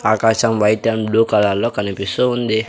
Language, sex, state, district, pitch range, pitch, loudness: Telugu, male, Andhra Pradesh, Sri Satya Sai, 105-115 Hz, 110 Hz, -17 LUFS